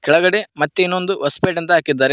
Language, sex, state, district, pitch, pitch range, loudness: Kannada, male, Karnataka, Koppal, 175 Hz, 145-185 Hz, -16 LUFS